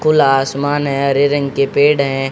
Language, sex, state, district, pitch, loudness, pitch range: Hindi, male, Haryana, Jhajjar, 140 Hz, -14 LUFS, 135-145 Hz